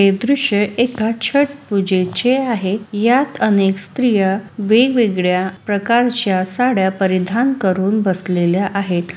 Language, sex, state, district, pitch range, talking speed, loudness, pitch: Marathi, female, Maharashtra, Sindhudurg, 190-240 Hz, 105 wpm, -16 LUFS, 205 Hz